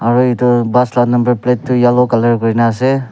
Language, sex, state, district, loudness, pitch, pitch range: Nagamese, male, Nagaland, Kohima, -13 LUFS, 120 Hz, 120-125 Hz